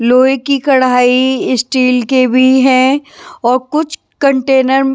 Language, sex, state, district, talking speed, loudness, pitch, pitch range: Hindi, female, Maharashtra, Washim, 135 wpm, -11 LUFS, 260 Hz, 255-275 Hz